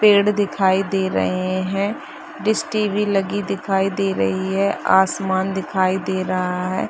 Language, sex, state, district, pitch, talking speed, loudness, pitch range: Hindi, female, Bihar, Saharsa, 195 Hz, 150 wpm, -20 LUFS, 185-205 Hz